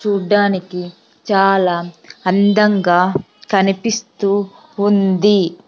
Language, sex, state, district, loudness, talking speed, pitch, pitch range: Telugu, female, Andhra Pradesh, Sri Satya Sai, -15 LUFS, 65 wpm, 195 Hz, 185-205 Hz